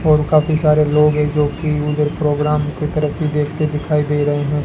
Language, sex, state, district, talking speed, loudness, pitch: Hindi, male, Rajasthan, Bikaner, 205 wpm, -17 LUFS, 150 Hz